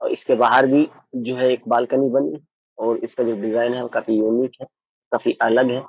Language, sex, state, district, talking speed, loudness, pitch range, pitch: Hindi, male, Uttar Pradesh, Jyotiba Phule Nagar, 215 wpm, -20 LUFS, 120-135 Hz, 125 Hz